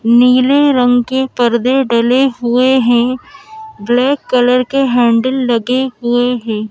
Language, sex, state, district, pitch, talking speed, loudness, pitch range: Hindi, female, Madhya Pradesh, Bhopal, 250 Hz, 125 wpm, -12 LUFS, 240-265 Hz